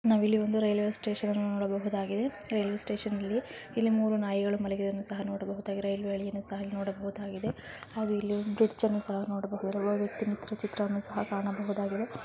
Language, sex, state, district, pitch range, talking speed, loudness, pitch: Kannada, female, Karnataka, Chamarajanagar, 200-215 Hz, 100 wpm, -32 LUFS, 205 Hz